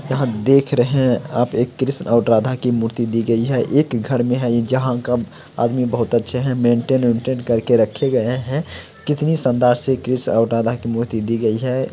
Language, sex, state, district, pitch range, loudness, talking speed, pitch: Hindi, male, Bihar, Samastipur, 115-130 Hz, -18 LUFS, 210 wpm, 125 Hz